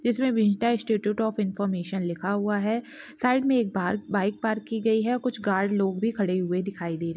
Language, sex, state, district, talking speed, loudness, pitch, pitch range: Hindi, female, Chhattisgarh, Balrampur, 225 wpm, -26 LUFS, 210 Hz, 195-230 Hz